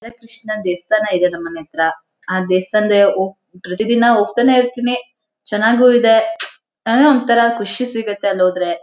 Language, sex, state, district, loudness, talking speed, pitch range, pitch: Kannada, female, Karnataka, Shimoga, -15 LUFS, 130 wpm, 185-235 Hz, 215 Hz